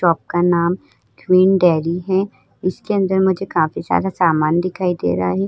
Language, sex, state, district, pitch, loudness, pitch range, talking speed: Hindi, female, Uttar Pradesh, Muzaffarnagar, 175 Hz, -17 LUFS, 165-190 Hz, 175 wpm